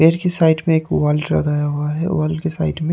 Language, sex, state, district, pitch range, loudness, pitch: Hindi, male, Haryana, Charkhi Dadri, 150-165 Hz, -18 LUFS, 160 Hz